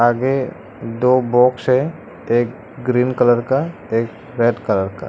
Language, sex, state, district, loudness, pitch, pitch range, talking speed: Hindi, male, Arunachal Pradesh, Lower Dibang Valley, -18 LUFS, 125 Hz, 115-130 Hz, 140 wpm